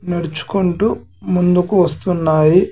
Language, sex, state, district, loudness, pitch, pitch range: Telugu, male, Andhra Pradesh, Sri Satya Sai, -16 LUFS, 180 Hz, 160-185 Hz